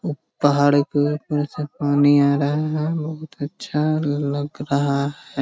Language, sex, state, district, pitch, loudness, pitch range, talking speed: Magahi, male, Bihar, Jahanabad, 145 Hz, -21 LUFS, 145-155 Hz, 145 wpm